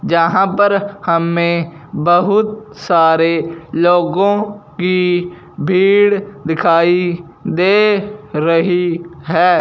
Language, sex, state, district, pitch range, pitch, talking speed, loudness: Hindi, male, Punjab, Fazilka, 165-200 Hz, 175 Hz, 75 wpm, -14 LUFS